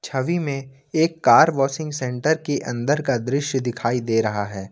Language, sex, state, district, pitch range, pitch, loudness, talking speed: Hindi, male, Jharkhand, Ranchi, 120-150 Hz, 135 Hz, -21 LUFS, 180 wpm